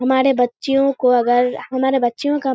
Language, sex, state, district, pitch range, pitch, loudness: Hindi, female, Bihar, Kishanganj, 245-270 Hz, 260 Hz, -17 LUFS